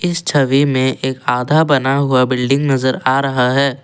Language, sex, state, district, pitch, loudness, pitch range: Hindi, male, Assam, Kamrup Metropolitan, 135 Hz, -15 LUFS, 130-140 Hz